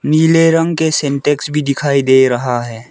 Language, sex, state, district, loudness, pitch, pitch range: Hindi, male, Arunachal Pradesh, Lower Dibang Valley, -13 LUFS, 145 Hz, 130-160 Hz